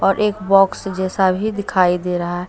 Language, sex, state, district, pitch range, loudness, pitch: Hindi, female, Jharkhand, Deoghar, 180-195 Hz, -18 LUFS, 190 Hz